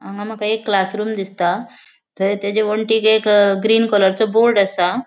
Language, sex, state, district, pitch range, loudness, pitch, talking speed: Konkani, female, Goa, North and South Goa, 200-220 Hz, -16 LUFS, 210 Hz, 155 wpm